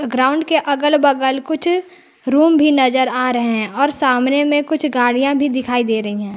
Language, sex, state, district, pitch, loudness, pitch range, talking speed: Hindi, female, Jharkhand, Palamu, 275 Hz, -16 LUFS, 255-300 Hz, 195 wpm